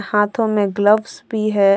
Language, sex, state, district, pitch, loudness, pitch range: Hindi, female, Jharkhand, Deoghar, 210 Hz, -18 LUFS, 200-215 Hz